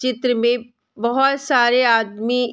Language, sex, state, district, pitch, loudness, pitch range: Hindi, female, Bihar, Sitamarhi, 245 Hz, -18 LUFS, 235-255 Hz